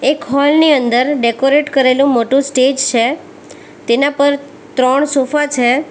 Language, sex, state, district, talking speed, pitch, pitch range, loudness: Gujarati, female, Gujarat, Valsad, 140 wpm, 275 Hz, 255-290 Hz, -13 LUFS